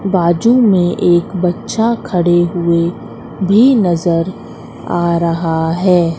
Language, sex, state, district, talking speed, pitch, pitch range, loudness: Hindi, female, Madhya Pradesh, Katni, 105 wpm, 175 Hz, 170-195 Hz, -13 LUFS